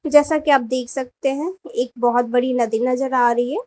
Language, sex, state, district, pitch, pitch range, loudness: Hindi, female, Uttar Pradesh, Lalitpur, 255 Hz, 245-285 Hz, -19 LUFS